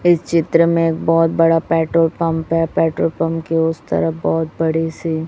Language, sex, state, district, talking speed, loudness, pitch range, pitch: Hindi, female, Chhattisgarh, Raipur, 195 wpm, -17 LUFS, 160-165 Hz, 165 Hz